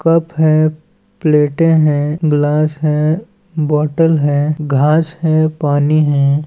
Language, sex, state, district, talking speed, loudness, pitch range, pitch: Chhattisgarhi, male, Chhattisgarh, Balrampur, 110 wpm, -14 LUFS, 150-160 Hz, 155 Hz